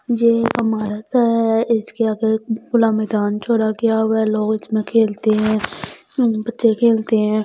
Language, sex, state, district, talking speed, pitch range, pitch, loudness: Hindi, female, Delhi, New Delhi, 145 wpm, 215-230 Hz, 220 Hz, -18 LUFS